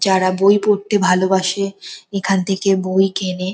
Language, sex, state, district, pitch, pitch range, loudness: Bengali, female, West Bengal, North 24 Parganas, 195 Hz, 185-195 Hz, -17 LUFS